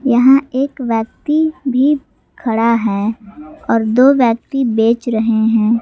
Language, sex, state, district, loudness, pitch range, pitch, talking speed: Hindi, female, Jharkhand, Palamu, -14 LUFS, 225-275 Hz, 240 Hz, 125 wpm